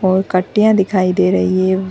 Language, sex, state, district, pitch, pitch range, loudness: Hindi, female, Bihar, Gaya, 185 Hz, 185-190 Hz, -14 LUFS